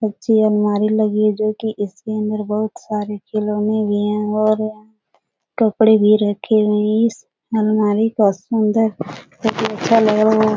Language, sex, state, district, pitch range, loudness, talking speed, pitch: Hindi, female, Bihar, Jahanabad, 210-220 Hz, -17 LUFS, 155 wpm, 215 Hz